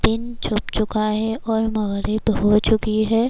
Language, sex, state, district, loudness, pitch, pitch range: Urdu, female, Bihar, Kishanganj, -21 LUFS, 215 Hz, 215-225 Hz